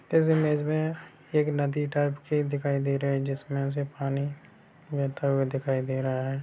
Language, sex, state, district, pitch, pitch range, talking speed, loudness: Hindi, male, Bihar, Sitamarhi, 145 Hz, 135-150 Hz, 185 wpm, -28 LUFS